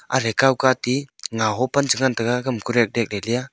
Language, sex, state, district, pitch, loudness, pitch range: Wancho, male, Arunachal Pradesh, Longding, 125 Hz, -21 LUFS, 115-130 Hz